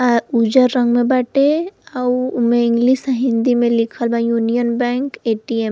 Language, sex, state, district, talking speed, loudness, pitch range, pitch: Bhojpuri, female, Uttar Pradesh, Varanasi, 180 wpm, -16 LUFS, 235-255 Hz, 245 Hz